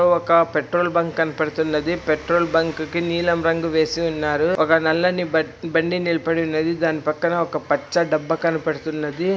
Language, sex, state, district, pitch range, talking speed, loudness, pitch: Telugu, male, Andhra Pradesh, Anantapur, 155-170 Hz, 145 wpm, -20 LUFS, 165 Hz